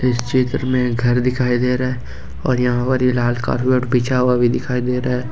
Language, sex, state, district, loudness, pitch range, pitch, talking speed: Hindi, male, Jharkhand, Ranchi, -18 LUFS, 120-125 Hz, 125 Hz, 250 wpm